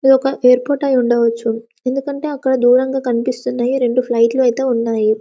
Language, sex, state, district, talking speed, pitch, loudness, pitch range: Telugu, female, Telangana, Karimnagar, 150 wpm, 250 Hz, -16 LUFS, 240-265 Hz